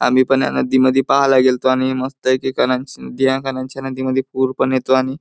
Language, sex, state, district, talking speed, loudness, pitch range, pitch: Marathi, male, Maharashtra, Chandrapur, 160 wpm, -17 LUFS, 130-135 Hz, 130 Hz